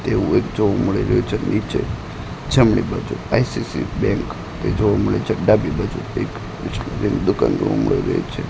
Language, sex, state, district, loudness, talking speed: Gujarati, male, Gujarat, Gandhinagar, -20 LUFS, 170 wpm